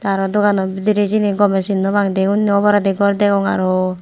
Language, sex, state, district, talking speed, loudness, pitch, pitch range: Chakma, female, Tripura, Unakoti, 195 wpm, -16 LUFS, 200 Hz, 195-205 Hz